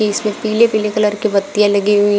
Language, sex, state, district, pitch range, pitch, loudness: Hindi, female, Uttar Pradesh, Shamli, 205-215 Hz, 210 Hz, -15 LUFS